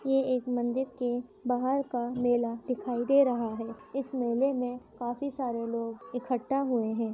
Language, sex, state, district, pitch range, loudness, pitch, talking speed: Hindi, female, Uttar Pradesh, Ghazipur, 235-260 Hz, -30 LUFS, 245 Hz, 170 wpm